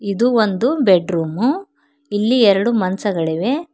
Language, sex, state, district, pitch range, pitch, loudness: Kannada, female, Karnataka, Bangalore, 190-255 Hz, 215 Hz, -17 LUFS